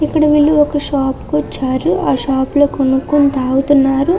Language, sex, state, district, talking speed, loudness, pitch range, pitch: Telugu, female, Andhra Pradesh, Chittoor, 155 wpm, -14 LUFS, 265-295 Hz, 280 Hz